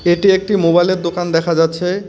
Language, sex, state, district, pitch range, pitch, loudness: Bengali, male, West Bengal, Cooch Behar, 170-185 Hz, 175 Hz, -14 LUFS